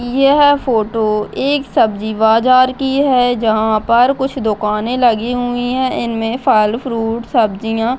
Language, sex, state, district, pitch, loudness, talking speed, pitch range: Hindi, female, Bihar, Muzaffarpur, 240 Hz, -14 LUFS, 145 wpm, 220-260 Hz